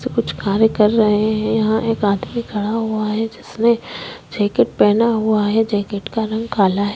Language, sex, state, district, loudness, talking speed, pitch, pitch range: Hindi, female, Chhattisgarh, Korba, -18 LUFS, 200 wpm, 220 Hz, 205-225 Hz